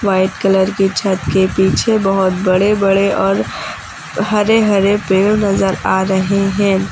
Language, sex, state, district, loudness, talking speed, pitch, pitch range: Hindi, female, Uttar Pradesh, Lucknow, -14 LUFS, 145 wpm, 195 Hz, 190-200 Hz